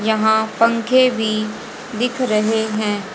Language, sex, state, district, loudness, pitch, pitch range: Hindi, female, Haryana, Jhajjar, -18 LUFS, 220 Hz, 215-235 Hz